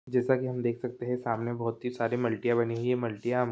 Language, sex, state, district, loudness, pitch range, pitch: Hindi, male, Maharashtra, Pune, -30 LUFS, 115-125 Hz, 120 Hz